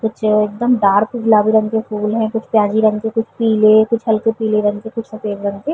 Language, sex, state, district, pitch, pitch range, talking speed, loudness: Hindi, female, Bihar, Vaishali, 220 Hz, 210-225 Hz, 250 wpm, -16 LUFS